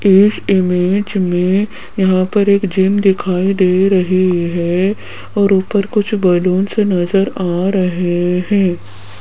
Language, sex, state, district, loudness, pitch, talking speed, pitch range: Hindi, female, Rajasthan, Jaipur, -14 LUFS, 190 Hz, 125 wpm, 180-200 Hz